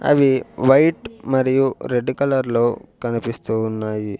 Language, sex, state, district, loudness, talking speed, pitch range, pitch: Telugu, male, Andhra Pradesh, Sri Satya Sai, -19 LUFS, 100 wpm, 115-135 Hz, 125 Hz